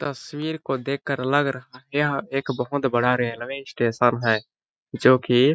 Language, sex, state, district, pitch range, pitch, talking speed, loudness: Hindi, male, Chhattisgarh, Balrampur, 125-140 Hz, 135 Hz, 160 wpm, -23 LUFS